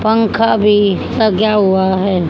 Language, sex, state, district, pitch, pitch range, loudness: Hindi, female, Haryana, Charkhi Dadri, 210 Hz, 190-220 Hz, -13 LUFS